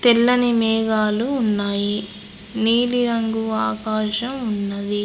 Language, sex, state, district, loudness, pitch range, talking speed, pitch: Telugu, female, Telangana, Mahabubabad, -19 LUFS, 205-235 Hz, 70 wpm, 220 Hz